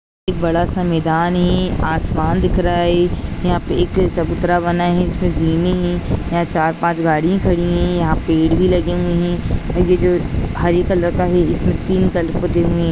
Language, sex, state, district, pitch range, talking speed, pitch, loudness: Hindi, female, Rajasthan, Nagaur, 170-180 Hz, 185 wpm, 175 Hz, -17 LUFS